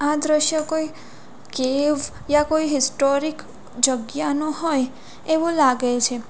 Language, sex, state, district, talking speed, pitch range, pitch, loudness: Gujarati, female, Gujarat, Valsad, 115 wpm, 265-310 Hz, 295 Hz, -21 LUFS